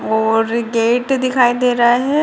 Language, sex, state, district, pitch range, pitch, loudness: Hindi, female, Bihar, Jamui, 230-255 Hz, 240 Hz, -15 LUFS